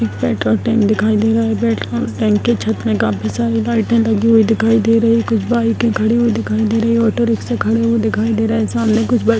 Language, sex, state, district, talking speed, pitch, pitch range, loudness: Hindi, female, Bihar, Darbhanga, 270 wpm, 225 Hz, 215-230 Hz, -15 LUFS